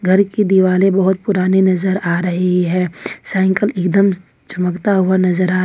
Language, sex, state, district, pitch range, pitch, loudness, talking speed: Hindi, female, Jharkhand, Ranchi, 180-190 Hz, 185 Hz, -15 LUFS, 160 wpm